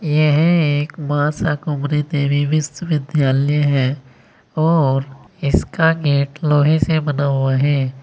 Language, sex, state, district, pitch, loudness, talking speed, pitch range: Hindi, male, Uttar Pradesh, Saharanpur, 145 Hz, -17 LUFS, 110 wpm, 140-155 Hz